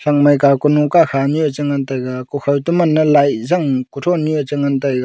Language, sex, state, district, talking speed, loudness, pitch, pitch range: Wancho, male, Arunachal Pradesh, Longding, 190 wpm, -15 LUFS, 145 Hz, 140-155 Hz